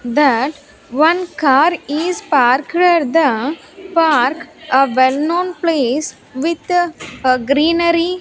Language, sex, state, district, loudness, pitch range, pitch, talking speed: English, female, Andhra Pradesh, Sri Satya Sai, -15 LUFS, 270-340 Hz, 315 Hz, 95 wpm